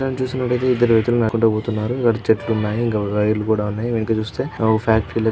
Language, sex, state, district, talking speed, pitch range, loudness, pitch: Telugu, male, Andhra Pradesh, Guntur, 180 wpm, 110-120 Hz, -19 LUFS, 110 Hz